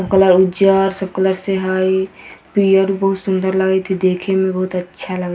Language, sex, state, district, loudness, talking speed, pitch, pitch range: Hindi, female, Bihar, Vaishali, -16 LUFS, 125 wpm, 190 Hz, 185-195 Hz